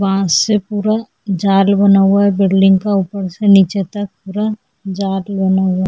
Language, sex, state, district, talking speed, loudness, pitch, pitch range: Hindi, female, Goa, North and South Goa, 185 wpm, -14 LUFS, 195 Hz, 195-205 Hz